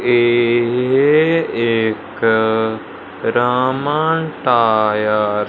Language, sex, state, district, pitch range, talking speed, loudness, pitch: Hindi, male, Punjab, Fazilka, 110-130 Hz, 55 wpm, -16 LUFS, 120 Hz